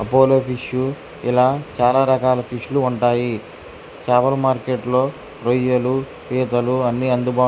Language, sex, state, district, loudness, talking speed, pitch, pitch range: Telugu, male, Andhra Pradesh, Krishna, -19 LUFS, 120 wpm, 125 Hz, 125-130 Hz